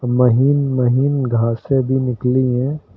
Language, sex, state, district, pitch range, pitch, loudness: Hindi, male, Uttar Pradesh, Lucknow, 125-135 Hz, 130 Hz, -17 LUFS